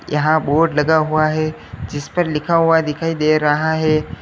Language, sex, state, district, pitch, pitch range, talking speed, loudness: Hindi, male, Uttar Pradesh, Lalitpur, 155 Hz, 150-160 Hz, 185 wpm, -17 LUFS